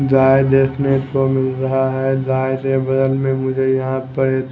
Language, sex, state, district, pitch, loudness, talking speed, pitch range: Hindi, male, Chhattisgarh, Raipur, 135 Hz, -17 LUFS, 175 wpm, 130-135 Hz